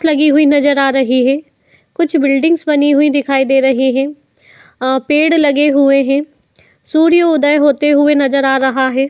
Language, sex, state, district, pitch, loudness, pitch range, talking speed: Hindi, female, Uttar Pradesh, Jalaun, 285 Hz, -12 LUFS, 270-295 Hz, 180 wpm